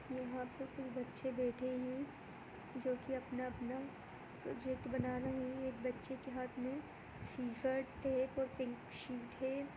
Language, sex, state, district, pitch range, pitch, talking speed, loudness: Hindi, female, Bihar, Muzaffarpur, 255-265 Hz, 255 Hz, 145 wpm, -43 LUFS